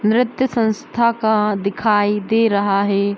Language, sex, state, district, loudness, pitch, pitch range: Hindi, female, Uttar Pradesh, Muzaffarnagar, -17 LUFS, 215 Hz, 200-225 Hz